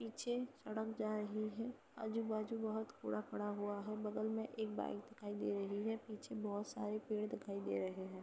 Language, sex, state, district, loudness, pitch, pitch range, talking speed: Hindi, female, Uttar Pradesh, Jalaun, -44 LUFS, 215 Hz, 205-220 Hz, 195 wpm